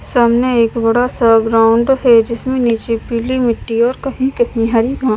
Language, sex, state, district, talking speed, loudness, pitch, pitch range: Hindi, female, Punjab, Kapurthala, 175 wpm, -14 LUFS, 235 Hz, 230-250 Hz